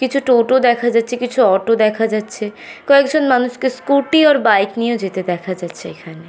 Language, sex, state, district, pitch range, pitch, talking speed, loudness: Bengali, female, West Bengal, North 24 Parganas, 205-260 Hz, 235 Hz, 170 wpm, -15 LUFS